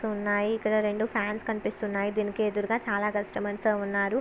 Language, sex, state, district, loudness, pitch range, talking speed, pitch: Telugu, female, Andhra Pradesh, Visakhapatnam, -28 LUFS, 205-215 Hz, 140 wpm, 210 Hz